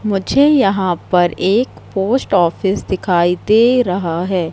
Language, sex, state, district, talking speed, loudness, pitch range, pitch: Hindi, female, Madhya Pradesh, Katni, 130 wpm, -15 LUFS, 180-220 Hz, 190 Hz